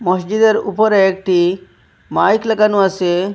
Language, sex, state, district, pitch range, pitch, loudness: Bengali, male, Assam, Hailakandi, 185-215 Hz, 195 Hz, -14 LUFS